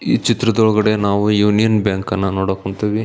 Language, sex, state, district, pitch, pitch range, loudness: Kannada, male, Karnataka, Belgaum, 105 Hz, 95-110 Hz, -16 LUFS